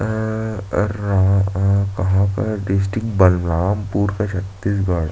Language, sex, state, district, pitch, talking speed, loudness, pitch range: Chhattisgarhi, male, Chhattisgarh, Sarguja, 100 Hz, 105 wpm, -19 LUFS, 95-105 Hz